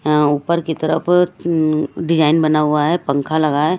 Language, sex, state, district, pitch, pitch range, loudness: Hindi, female, Odisha, Malkangiri, 155 Hz, 150-170 Hz, -16 LUFS